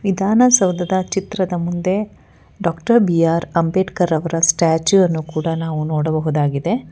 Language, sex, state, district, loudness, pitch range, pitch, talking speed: Kannada, female, Karnataka, Bangalore, -17 LUFS, 160-190 Hz, 175 Hz, 115 wpm